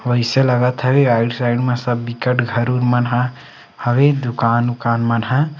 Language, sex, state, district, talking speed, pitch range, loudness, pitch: Chhattisgarhi, male, Chhattisgarh, Sarguja, 215 wpm, 120-125 Hz, -17 LUFS, 120 Hz